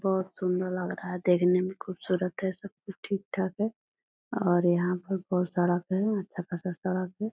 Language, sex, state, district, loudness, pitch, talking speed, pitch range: Hindi, female, Bihar, Purnia, -29 LUFS, 185 Hz, 195 wpm, 180-195 Hz